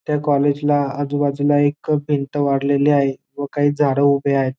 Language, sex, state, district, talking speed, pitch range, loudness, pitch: Marathi, male, Maharashtra, Dhule, 170 wpm, 140-145 Hz, -18 LUFS, 145 Hz